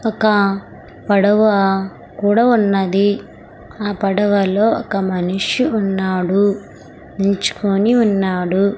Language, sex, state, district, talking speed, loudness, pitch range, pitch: Telugu, female, Andhra Pradesh, Sri Satya Sai, 75 wpm, -16 LUFS, 195-210 Hz, 200 Hz